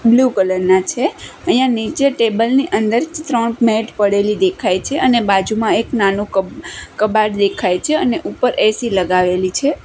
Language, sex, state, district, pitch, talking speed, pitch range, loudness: Gujarati, female, Gujarat, Gandhinagar, 220 Hz, 160 wpm, 195-245 Hz, -16 LUFS